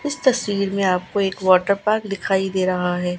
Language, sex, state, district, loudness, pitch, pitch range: Hindi, female, Gujarat, Gandhinagar, -20 LUFS, 195 Hz, 185-200 Hz